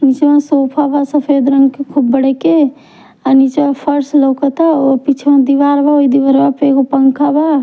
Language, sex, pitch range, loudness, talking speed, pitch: Bhojpuri, female, 270-290 Hz, -11 LUFS, 180 wpm, 280 Hz